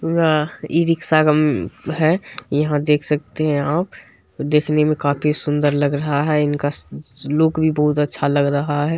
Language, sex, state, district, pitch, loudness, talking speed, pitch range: Hindi, male, Bihar, Supaul, 150 Hz, -19 LUFS, 160 wpm, 145-155 Hz